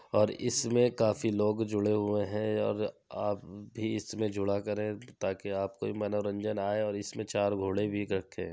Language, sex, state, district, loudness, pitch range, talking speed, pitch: Hindi, male, Uttar Pradesh, Jyotiba Phule Nagar, -32 LUFS, 100-110 Hz, 175 wpm, 105 Hz